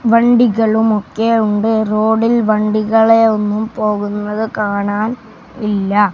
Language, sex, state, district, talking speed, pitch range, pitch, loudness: Malayalam, male, Kerala, Kasaragod, 90 wpm, 210-225 Hz, 220 Hz, -14 LUFS